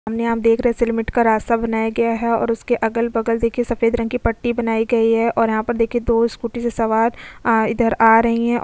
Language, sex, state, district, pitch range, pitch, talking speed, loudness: Hindi, female, Goa, North and South Goa, 225-235 Hz, 230 Hz, 255 wpm, -18 LUFS